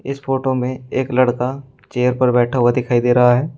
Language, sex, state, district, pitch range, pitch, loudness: Hindi, male, Uttar Pradesh, Shamli, 125-130 Hz, 125 Hz, -17 LUFS